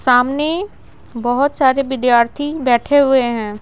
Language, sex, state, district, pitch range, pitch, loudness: Hindi, female, Bihar, Patna, 240-285 Hz, 265 Hz, -15 LUFS